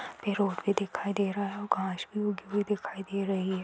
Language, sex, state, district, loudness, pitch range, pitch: Hindi, female, Uttar Pradesh, Deoria, -31 LUFS, 195-205 Hz, 200 Hz